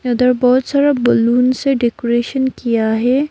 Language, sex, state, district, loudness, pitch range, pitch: Hindi, female, West Bengal, Darjeeling, -15 LUFS, 240-265 Hz, 250 Hz